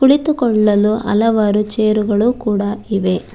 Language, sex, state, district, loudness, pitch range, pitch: Kannada, female, Karnataka, Bangalore, -15 LUFS, 210-230 Hz, 215 Hz